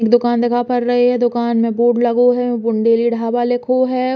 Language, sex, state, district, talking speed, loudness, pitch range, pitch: Bundeli, female, Uttar Pradesh, Hamirpur, 215 wpm, -15 LUFS, 235-245 Hz, 240 Hz